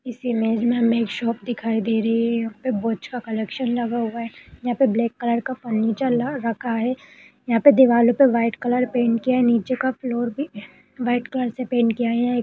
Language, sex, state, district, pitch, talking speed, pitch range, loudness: Hindi, female, Bihar, Saharsa, 240 Hz, 230 wpm, 230-250 Hz, -21 LUFS